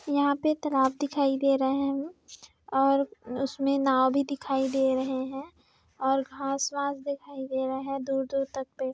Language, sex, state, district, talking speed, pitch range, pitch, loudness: Hindi, female, Chhattisgarh, Bastar, 180 wpm, 265-280 Hz, 275 Hz, -28 LUFS